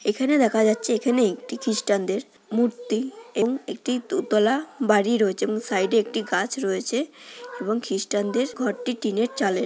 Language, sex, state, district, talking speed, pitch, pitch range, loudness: Bengali, female, West Bengal, Dakshin Dinajpur, 135 wpm, 230 Hz, 210-250 Hz, -24 LUFS